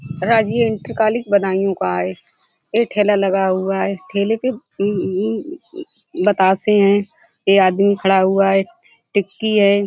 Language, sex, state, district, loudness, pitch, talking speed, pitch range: Hindi, female, Uttar Pradesh, Budaun, -17 LUFS, 200 Hz, 140 wpm, 190-220 Hz